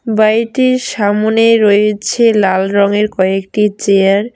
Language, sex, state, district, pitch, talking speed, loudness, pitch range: Bengali, female, West Bengal, Cooch Behar, 210 Hz, 110 wpm, -12 LUFS, 200-225 Hz